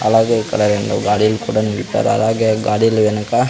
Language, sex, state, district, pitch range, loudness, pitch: Telugu, male, Andhra Pradesh, Sri Satya Sai, 105-110 Hz, -16 LUFS, 110 Hz